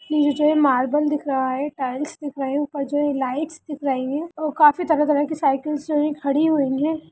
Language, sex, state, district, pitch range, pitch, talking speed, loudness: Hindi, female, Bihar, Gaya, 275-300 Hz, 295 Hz, 220 wpm, -21 LUFS